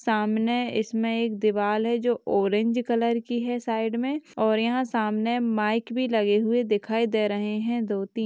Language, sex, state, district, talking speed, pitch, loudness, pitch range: Hindi, female, Uttar Pradesh, Gorakhpur, 175 wpm, 225 Hz, -25 LUFS, 215-235 Hz